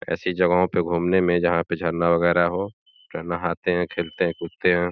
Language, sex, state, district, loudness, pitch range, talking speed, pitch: Hindi, male, Uttar Pradesh, Gorakhpur, -22 LUFS, 85-90 Hz, 195 wpm, 85 Hz